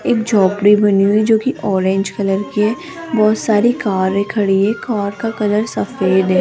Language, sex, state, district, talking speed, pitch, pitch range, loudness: Hindi, female, Rajasthan, Jaipur, 195 wpm, 210 Hz, 195-225 Hz, -15 LUFS